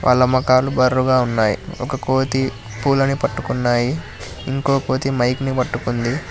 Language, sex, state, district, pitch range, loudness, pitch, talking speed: Telugu, male, Telangana, Hyderabad, 120-135 Hz, -19 LUFS, 130 Hz, 135 wpm